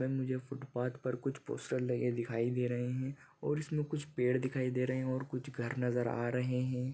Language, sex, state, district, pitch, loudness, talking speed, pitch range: Hindi, male, Maharashtra, Nagpur, 125 Hz, -36 LUFS, 205 wpm, 125-135 Hz